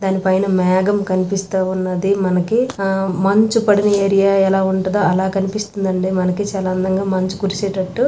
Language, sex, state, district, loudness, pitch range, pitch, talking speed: Telugu, female, Andhra Pradesh, Anantapur, -17 LUFS, 185-200 Hz, 195 Hz, 135 wpm